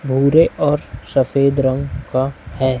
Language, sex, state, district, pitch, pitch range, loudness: Hindi, male, Chhattisgarh, Raipur, 135 Hz, 130-140 Hz, -17 LUFS